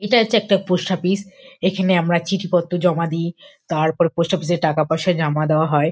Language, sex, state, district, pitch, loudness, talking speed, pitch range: Bengali, female, West Bengal, Kolkata, 175 Hz, -19 LUFS, 215 wpm, 165-190 Hz